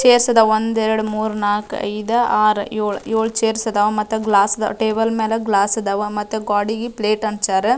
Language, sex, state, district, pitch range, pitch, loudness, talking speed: Kannada, female, Karnataka, Dharwad, 210-225 Hz, 215 Hz, -18 LUFS, 170 wpm